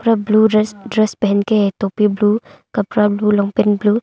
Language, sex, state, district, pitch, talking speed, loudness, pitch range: Hindi, female, Arunachal Pradesh, Longding, 210 Hz, 180 wpm, -16 LUFS, 205-215 Hz